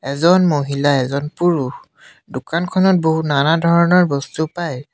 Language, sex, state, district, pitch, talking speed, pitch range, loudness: Assamese, male, Assam, Sonitpur, 160 Hz, 120 wpm, 140-175 Hz, -16 LUFS